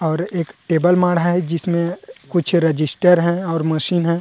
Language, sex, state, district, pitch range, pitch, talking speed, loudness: Chhattisgarhi, male, Chhattisgarh, Rajnandgaon, 165-180 Hz, 170 Hz, 170 wpm, -18 LUFS